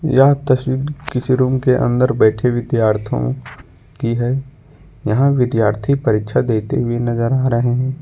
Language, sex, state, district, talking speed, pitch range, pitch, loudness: Hindi, male, Jharkhand, Ranchi, 140 wpm, 115-130 Hz, 125 Hz, -17 LUFS